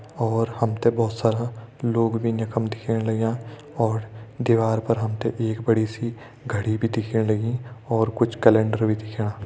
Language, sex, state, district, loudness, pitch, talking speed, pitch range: Hindi, male, Uttarakhand, Tehri Garhwal, -24 LUFS, 115 Hz, 170 wpm, 110-115 Hz